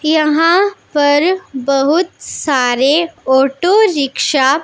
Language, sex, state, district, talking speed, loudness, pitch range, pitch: Hindi, female, Punjab, Pathankot, 90 wpm, -13 LUFS, 275-340 Hz, 300 Hz